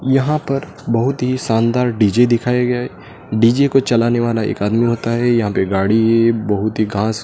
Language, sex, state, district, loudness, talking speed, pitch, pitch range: Hindi, male, Madhya Pradesh, Dhar, -16 LUFS, 190 wpm, 115 Hz, 110-125 Hz